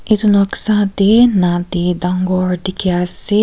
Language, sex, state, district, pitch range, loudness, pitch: Nagamese, female, Nagaland, Kohima, 180-205 Hz, -14 LUFS, 190 Hz